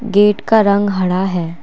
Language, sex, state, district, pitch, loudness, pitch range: Hindi, female, Assam, Kamrup Metropolitan, 200 Hz, -14 LUFS, 185-210 Hz